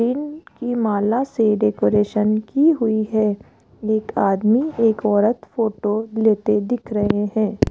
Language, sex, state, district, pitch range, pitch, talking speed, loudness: Hindi, female, Rajasthan, Jaipur, 210-235 Hz, 215 Hz, 130 wpm, -19 LUFS